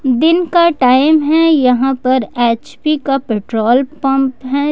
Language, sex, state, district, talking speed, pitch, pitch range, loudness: Hindi, female, Jharkhand, Ranchi, 165 wpm, 270 Hz, 250-305 Hz, -13 LUFS